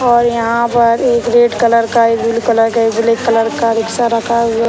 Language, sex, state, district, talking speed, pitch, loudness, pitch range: Hindi, female, Bihar, Sitamarhi, 245 wpm, 230 Hz, -12 LUFS, 230-235 Hz